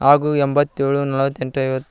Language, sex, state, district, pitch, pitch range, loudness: Kannada, male, Karnataka, Koppal, 140 Hz, 135-145 Hz, -19 LUFS